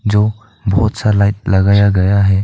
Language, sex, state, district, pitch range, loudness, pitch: Hindi, male, Arunachal Pradesh, Papum Pare, 95-105 Hz, -13 LUFS, 100 Hz